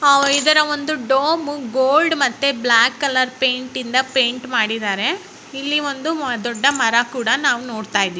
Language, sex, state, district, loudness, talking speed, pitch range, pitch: Kannada, female, Karnataka, Raichur, -17 LUFS, 125 wpm, 240-290 Hz, 265 Hz